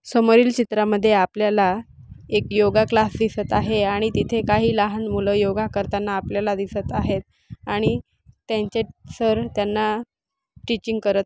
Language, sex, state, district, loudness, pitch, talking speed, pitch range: Marathi, female, Maharashtra, Aurangabad, -21 LUFS, 215 Hz, 130 wpm, 205-225 Hz